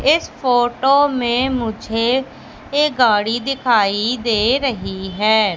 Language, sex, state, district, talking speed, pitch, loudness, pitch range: Hindi, female, Madhya Pradesh, Katni, 110 wpm, 240 Hz, -17 LUFS, 215-265 Hz